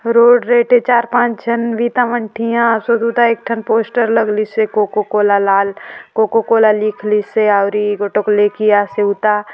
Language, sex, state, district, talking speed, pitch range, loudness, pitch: Halbi, female, Chhattisgarh, Bastar, 180 wpm, 210-235 Hz, -14 LUFS, 220 Hz